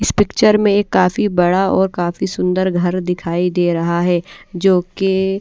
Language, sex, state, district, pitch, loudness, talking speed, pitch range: Hindi, female, Odisha, Malkangiri, 185 Hz, -16 LUFS, 165 wpm, 175-195 Hz